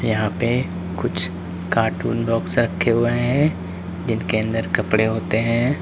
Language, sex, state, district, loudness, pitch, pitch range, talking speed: Hindi, male, Uttar Pradesh, Lalitpur, -21 LUFS, 110 Hz, 90-115 Hz, 135 wpm